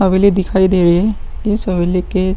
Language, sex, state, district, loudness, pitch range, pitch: Hindi, male, Uttar Pradesh, Muzaffarnagar, -14 LUFS, 185-195 Hz, 190 Hz